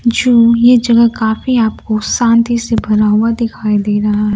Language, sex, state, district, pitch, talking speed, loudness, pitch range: Hindi, female, Bihar, Kaimur, 230 Hz, 165 wpm, -12 LUFS, 215-235 Hz